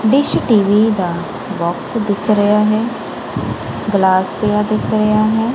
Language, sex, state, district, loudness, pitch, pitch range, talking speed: Punjabi, female, Punjab, Kapurthala, -16 LUFS, 210 Hz, 200-220 Hz, 130 wpm